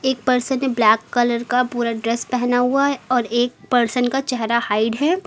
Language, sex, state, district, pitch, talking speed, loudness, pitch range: Hindi, female, Uttar Pradesh, Lucknow, 245 Hz, 205 wpm, -19 LUFS, 235-255 Hz